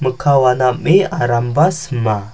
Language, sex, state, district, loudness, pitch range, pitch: Garo, male, Meghalaya, South Garo Hills, -15 LUFS, 120-150 Hz, 130 Hz